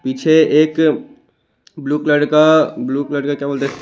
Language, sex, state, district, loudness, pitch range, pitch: Hindi, male, Chandigarh, Chandigarh, -15 LUFS, 140-155 Hz, 150 Hz